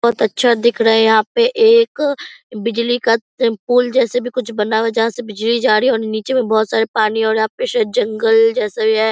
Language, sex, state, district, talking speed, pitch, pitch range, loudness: Hindi, female, Bihar, Purnia, 230 wpm, 235 Hz, 220-290 Hz, -15 LUFS